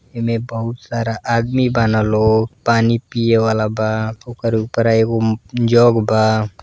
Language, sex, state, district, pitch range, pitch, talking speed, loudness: Bhojpuri, male, Uttar Pradesh, Deoria, 110-115 Hz, 115 Hz, 145 wpm, -17 LUFS